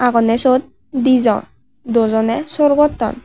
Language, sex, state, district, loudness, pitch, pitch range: Chakma, female, Tripura, Unakoti, -15 LUFS, 255 Hz, 230-280 Hz